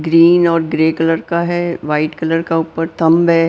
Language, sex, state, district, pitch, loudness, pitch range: Hindi, female, Punjab, Pathankot, 165 Hz, -14 LUFS, 160-170 Hz